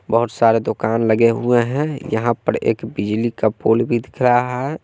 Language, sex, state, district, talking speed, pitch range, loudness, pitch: Hindi, male, Bihar, West Champaran, 200 wpm, 110-125 Hz, -18 LUFS, 115 Hz